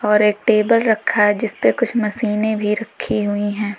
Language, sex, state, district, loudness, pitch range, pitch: Hindi, female, Uttar Pradesh, Lalitpur, -18 LUFS, 210-225 Hz, 210 Hz